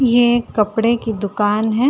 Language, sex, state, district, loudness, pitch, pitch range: Hindi, female, Uttar Pradesh, Jalaun, -17 LUFS, 225 Hz, 210-240 Hz